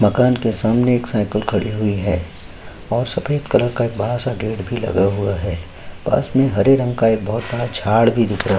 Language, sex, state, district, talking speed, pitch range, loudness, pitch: Hindi, male, Chhattisgarh, Korba, 225 wpm, 100-120 Hz, -18 LUFS, 110 Hz